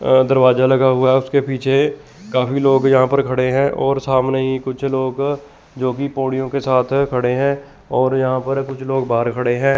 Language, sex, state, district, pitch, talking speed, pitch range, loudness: Hindi, male, Chandigarh, Chandigarh, 130 Hz, 205 wpm, 130-140 Hz, -17 LUFS